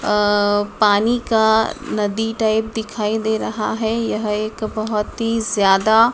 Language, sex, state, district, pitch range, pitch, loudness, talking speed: Hindi, female, Madhya Pradesh, Dhar, 210-225 Hz, 220 Hz, -18 LUFS, 135 wpm